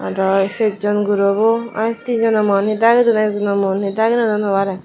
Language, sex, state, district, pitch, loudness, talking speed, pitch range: Chakma, female, Tripura, Dhalai, 210 Hz, -16 LUFS, 260 wpm, 200-225 Hz